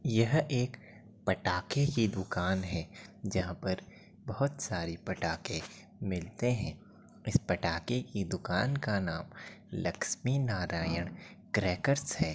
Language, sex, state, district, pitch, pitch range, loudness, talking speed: Hindi, male, Uttar Pradesh, Etah, 105 Hz, 90-125 Hz, -34 LUFS, 110 wpm